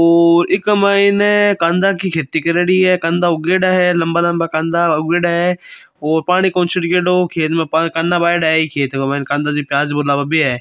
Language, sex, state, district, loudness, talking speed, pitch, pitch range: Marwari, male, Rajasthan, Churu, -14 LUFS, 180 wpm, 170 Hz, 160-180 Hz